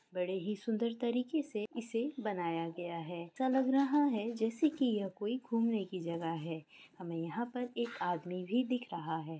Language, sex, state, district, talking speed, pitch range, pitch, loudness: Hindi, female, Maharashtra, Aurangabad, 180 wpm, 175-245 Hz, 215 Hz, -36 LUFS